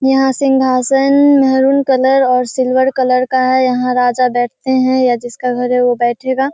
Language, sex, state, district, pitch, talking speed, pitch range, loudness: Hindi, female, Bihar, Kishanganj, 260 Hz, 175 wpm, 250-265 Hz, -13 LUFS